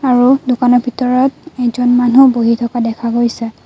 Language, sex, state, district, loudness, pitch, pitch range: Assamese, female, Assam, Kamrup Metropolitan, -13 LUFS, 245 Hz, 235-255 Hz